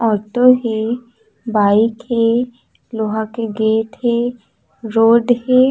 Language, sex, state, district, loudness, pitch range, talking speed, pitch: Chhattisgarhi, female, Chhattisgarh, Raigarh, -16 LUFS, 220-245 Hz, 105 wpm, 230 Hz